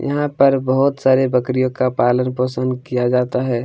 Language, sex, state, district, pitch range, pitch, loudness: Hindi, male, Chhattisgarh, Kabirdham, 125-135 Hz, 130 Hz, -17 LUFS